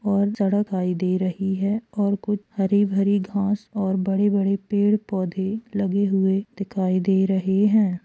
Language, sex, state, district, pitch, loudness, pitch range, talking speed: Hindi, female, Bihar, Purnia, 200 Hz, -22 LUFS, 190-205 Hz, 155 wpm